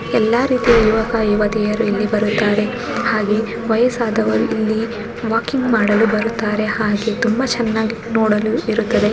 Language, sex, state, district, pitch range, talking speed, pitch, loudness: Kannada, female, Karnataka, Bijapur, 215-230 Hz, 110 wpm, 220 Hz, -17 LUFS